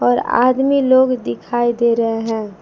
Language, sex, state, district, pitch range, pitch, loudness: Hindi, female, Jharkhand, Palamu, 220-255 Hz, 235 Hz, -16 LUFS